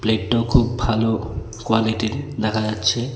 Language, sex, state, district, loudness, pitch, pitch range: Bengali, male, Tripura, West Tripura, -21 LUFS, 110 Hz, 110-120 Hz